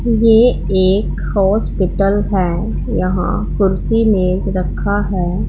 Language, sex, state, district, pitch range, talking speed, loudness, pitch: Hindi, female, Punjab, Pathankot, 185-210 Hz, 100 wpm, -15 LUFS, 195 Hz